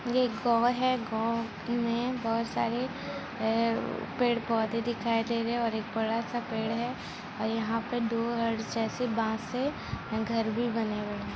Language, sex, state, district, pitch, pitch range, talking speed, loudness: Hindi, female, Bihar, Gopalganj, 230 Hz, 225-240 Hz, 170 wpm, -30 LUFS